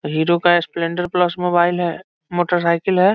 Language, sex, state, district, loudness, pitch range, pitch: Hindi, male, Bihar, Saran, -18 LUFS, 170-180 Hz, 175 Hz